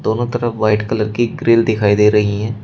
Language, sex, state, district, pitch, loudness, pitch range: Hindi, male, Uttar Pradesh, Shamli, 110 Hz, -15 LUFS, 105-115 Hz